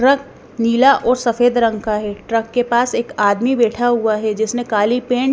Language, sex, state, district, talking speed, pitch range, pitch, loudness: Hindi, female, Bihar, Patna, 215 wpm, 220-245 Hz, 235 Hz, -16 LUFS